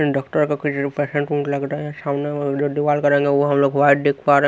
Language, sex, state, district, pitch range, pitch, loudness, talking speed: Hindi, male, Haryana, Rohtak, 140-145 Hz, 145 Hz, -19 LUFS, 305 wpm